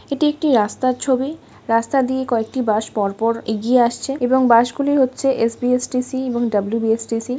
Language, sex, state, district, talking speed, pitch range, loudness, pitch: Bengali, female, West Bengal, Kolkata, 160 wpm, 230-260 Hz, -18 LUFS, 250 Hz